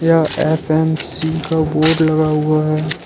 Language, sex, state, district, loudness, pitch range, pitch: Hindi, male, Jharkhand, Ranchi, -16 LUFS, 155-160 Hz, 155 Hz